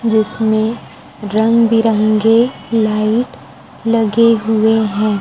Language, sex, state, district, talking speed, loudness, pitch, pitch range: Hindi, female, Chhattisgarh, Raipur, 80 wpm, -14 LUFS, 220 Hz, 215-230 Hz